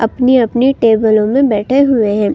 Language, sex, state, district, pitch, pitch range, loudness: Hindi, female, Uttar Pradesh, Budaun, 235 Hz, 220-260 Hz, -12 LUFS